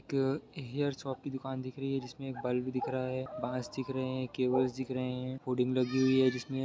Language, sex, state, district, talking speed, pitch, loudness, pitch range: Hindi, male, Bihar, Sitamarhi, 245 wpm, 130 Hz, -34 LUFS, 130-135 Hz